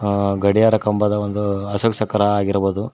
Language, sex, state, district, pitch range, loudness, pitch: Kannada, male, Karnataka, Koppal, 100-105 Hz, -18 LUFS, 105 Hz